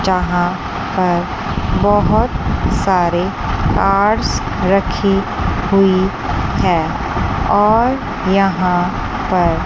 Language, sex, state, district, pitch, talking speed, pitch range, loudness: Hindi, female, Chandigarh, Chandigarh, 190 Hz, 70 wpm, 180-195 Hz, -16 LUFS